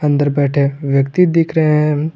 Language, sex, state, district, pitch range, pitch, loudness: Hindi, male, Jharkhand, Garhwa, 140-160 Hz, 150 Hz, -14 LUFS